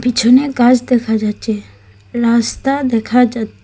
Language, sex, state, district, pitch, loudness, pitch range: Bengali, female, Assam, Hailakandi, 235 Hz, -14 LUFS, 220-250 Hz